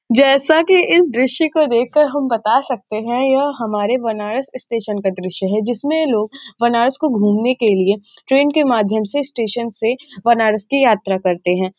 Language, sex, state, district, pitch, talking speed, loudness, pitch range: Hindi, female, Uttar Pradesh, Varanasi, 235 Hz, 185 wpm, -16 LUFS, 215-275 Hz